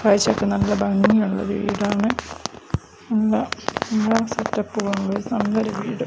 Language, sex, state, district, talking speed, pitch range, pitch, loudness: Malayalam, female, Kerala, Kozhikode, 120 wpm, 200-220 Hz, 210 Hz, -22 LUFS